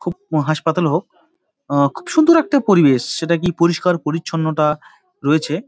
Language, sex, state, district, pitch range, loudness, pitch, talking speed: Bengali, male, West Bengal, Dakshin Dinajpur, 155-190 Hz, -17 LUFS, 165 Hz, 150 wpm